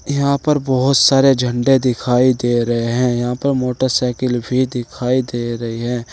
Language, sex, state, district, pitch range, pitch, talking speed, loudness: Hindi, male, Uttar Pradesh, Saharanpur, 120-130 Hz, 125 Hz, 165 wpm, -16 LUFS